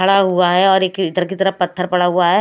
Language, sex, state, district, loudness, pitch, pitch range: Hindi, female, Chhattisgarh, Raipur, -15 LUFS, 185 Hz, 180-190 Hz